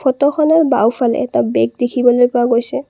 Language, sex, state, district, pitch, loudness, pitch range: Assamese, female, Assam, Kamrup Metropolitan, 245 Hz, -14 LUFS, 240-275 Hz